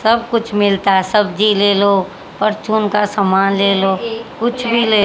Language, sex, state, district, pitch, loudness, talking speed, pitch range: Hindi, female, Haryana, Charkhi Dadri, 210 Hz, -15 LUFS, 180 wpm, 195-220 Hz